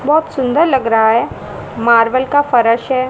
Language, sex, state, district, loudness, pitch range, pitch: Hindi, female, Haryana, Charkhi Dadri, -13 LUFS, 230-285 Hz, 255 Hz